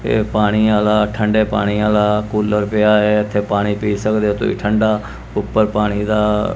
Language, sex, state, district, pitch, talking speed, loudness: Punjabi, male, Punjab, Kapurthala, 105 Hz, 175 wpm, -16 LUFS